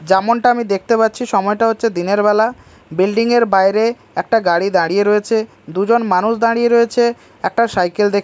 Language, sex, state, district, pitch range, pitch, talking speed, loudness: Bengali, male, Odisha, Malkangiri, 195-230 Hz, 220 Hz, 155 wpm, -15 LUFS